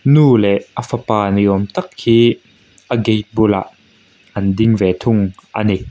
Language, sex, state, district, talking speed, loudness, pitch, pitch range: Mizo, male, Mizoram, Aizawl, 170 wpm, -15 LUFS, 110 Hz, 100-120 Hz